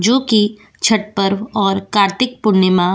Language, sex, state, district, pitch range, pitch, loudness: Hindi, female, Goa, North and South Goa, 195-220 Hz, 205 Hz, -15 LUFS